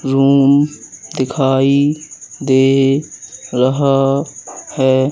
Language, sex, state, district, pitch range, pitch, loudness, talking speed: Hindi, male, Madhya Pradesh, Katni, 135-140 Hz, 135 Hz, -14 LUFS, 60 wpm